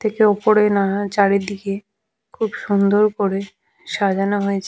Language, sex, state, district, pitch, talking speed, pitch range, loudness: Bengali, female, West Bengal, Malda, 200 Hz, 115 wpm, 200-210 Hz, -18 LUFS